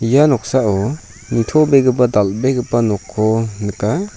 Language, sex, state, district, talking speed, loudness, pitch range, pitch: Garo, male, Meghalaya, South Garo Hills, 85 wpm, -16 LUFS, 105-130 Hz, 115 Hz